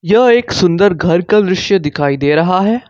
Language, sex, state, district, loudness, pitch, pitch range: Hindi, male, Jharkhand, Ranchi, -12 LUFS, 185 Hz, 170-210 Hz